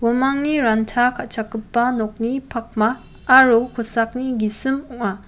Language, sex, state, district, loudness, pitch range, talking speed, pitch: Garo, female, Meghalaya, West Garo Hills, -18 LUFS, 225-255 Hz, 100 wpm, 235 Hz